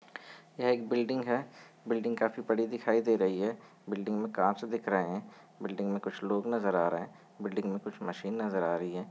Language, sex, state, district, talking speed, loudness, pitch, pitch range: Hindi, male, Goa, North and South Goa, 225 wpm, -33 LUFS, 105 Hz, 100-115 Hz